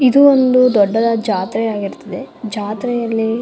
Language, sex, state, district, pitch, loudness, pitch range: Kannada, female, Karnataka, Mysore, 225 Hz, -15 LUFS, 215-250 Hz